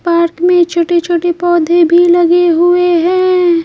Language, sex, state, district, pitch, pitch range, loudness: Hindi, female, Bihar, Patna, 345 Hz, 340-355 Hz, -10 LUFS